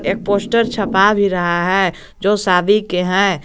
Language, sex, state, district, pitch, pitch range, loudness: Hindi, male, Jharkhand, Garhwa, 195 Hz, 180-205 Hz, -15 LUFS